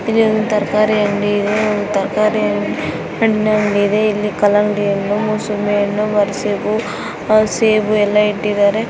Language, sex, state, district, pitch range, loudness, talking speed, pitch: Kannada, female, Karnataka, Bijapur, 205-215 Hz, -16 LUFS, 100 wpm, 210 Hz